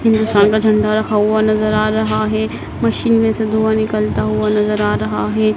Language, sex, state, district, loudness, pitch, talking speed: Hindi, female, Madhya Pradesh, Dhar, -15 LUFS, 210 Hz, 205 wpm